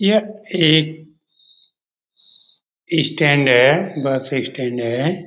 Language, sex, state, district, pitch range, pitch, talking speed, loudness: Hindi, male, Bihar, Jamui, 135-170 Hz, 155 Hz, 80 wpm, -17 LUFS